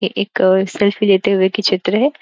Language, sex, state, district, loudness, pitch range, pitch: Hindi, female, Uttar Pradesh, Gorakhpur, -15 LUFS, 190-210 Hz, 200 Hz